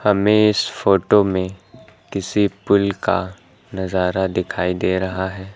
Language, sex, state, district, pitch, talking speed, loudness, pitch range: Hindi, male, Uttar Pradesh, Lucknow, 95 Hz, 130 wpm, -19 LUFS, 95-100 Hz